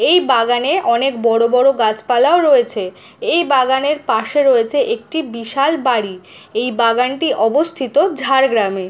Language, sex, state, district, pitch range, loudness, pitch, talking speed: Bengali, female, West Bengal, Jhargram, 230-290 Hz, -15 LUFS, 255 Hz, 135 wpm